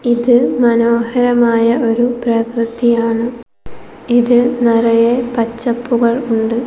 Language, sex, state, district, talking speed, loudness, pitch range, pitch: Malayalam, female, Kerala, Kozhikode, 70 wpm, -14 LUFS, 230-240 Hz, 235 Hz